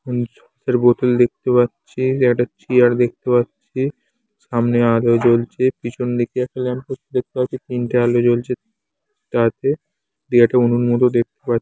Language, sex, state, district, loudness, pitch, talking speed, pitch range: Bengali, male, West Bengal, Jhargram, -18 LUFS, 125 Hz, 145 wpm, 120-130 Hz